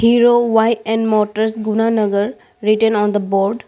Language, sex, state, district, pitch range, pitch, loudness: English, female, Arunachal Pradesh, Lower Dibang Valley, 210-225 Hz, 220 Hz, -16 LUFS